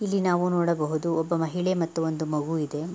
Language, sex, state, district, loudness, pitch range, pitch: Kannada, female, Karnataka, Mysore, -26 LUFS, 155-180 Hz, 165 Hz